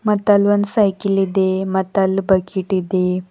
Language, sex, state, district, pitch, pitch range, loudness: Kannada, female, Karnataka, Bidar, 195 Hz, 190-205 Hz, -17 LUFS